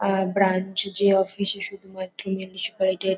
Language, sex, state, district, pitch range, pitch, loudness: Bengali, female, West Bengal, Kolkata, 190-195 Hz, 190 Hz, -23 LUFS